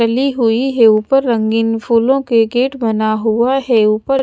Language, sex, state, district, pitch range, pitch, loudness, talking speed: Hindi, female, Chandigarh, Chandigarh, 225-265 Hz, 230 Hz, -14 LUFS, 170 wpm